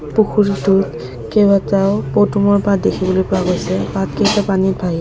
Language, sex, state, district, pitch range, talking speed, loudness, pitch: Assamese, female, Assam, Kamrup Metropolitan, 185-205 Hz, 130 wpm, -15 LUFS, 195 Hz